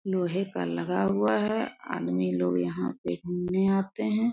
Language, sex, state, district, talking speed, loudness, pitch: Hindi, female, Jharkhand, Sahebganj, 165 wpm, -28 LUFS, 175 Hz